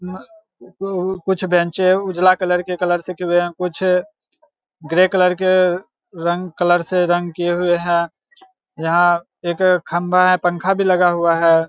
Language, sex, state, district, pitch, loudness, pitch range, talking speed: Hindi, male, Bihar, Saharsa, 180 Hz, -17 LUFS, 175-185 Hz, 165 wpm